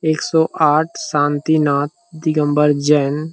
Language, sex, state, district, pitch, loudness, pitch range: Hindi, male, Chhattisgarh, Rajnandgaon, 150 Hz, -16 LUFS, 145-160 Hz